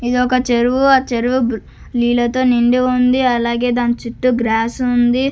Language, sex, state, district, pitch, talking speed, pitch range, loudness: Telugu, female, Andhra Pradesh, Sri Satya Sai, 245 Hz, 160 wpm, 240-255 Hz, -15 LUFS